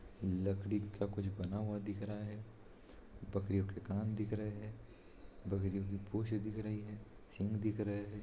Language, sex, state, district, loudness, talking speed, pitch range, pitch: Hindi, male, Bihar, Madhepura, -41 LUFS, 175 wpm, 100-105 Hz, 105 Hz